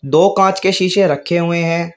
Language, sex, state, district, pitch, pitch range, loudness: Hindi, male, Uttar Pradesh, Shamli, 175 Hz, 170-190 Hz, -14 LUFS